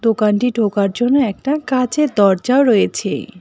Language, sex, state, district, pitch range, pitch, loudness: Bengali, female, West Bengal, Cooch Behar, 210-270 Hz, 240 Hz, -16 LUFS